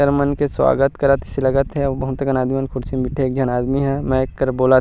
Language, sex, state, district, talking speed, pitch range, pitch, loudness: Chhattisgarhi, male, Chhattisgarh, Rajnandgaon, 310 wpm, 130-140 Hz, 135 Hz, -19 LUFS